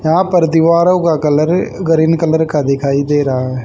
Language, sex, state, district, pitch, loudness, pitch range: Hindi, female, Haryana, Charkhi Dadri, 160 Hz, -13 LUFS, 145-165 Hz